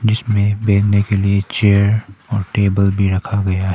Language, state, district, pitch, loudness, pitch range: Hindi, Arunachal Pradesh, Papum Pare, 100 Hz, -16 LUFS, 100-105 Hz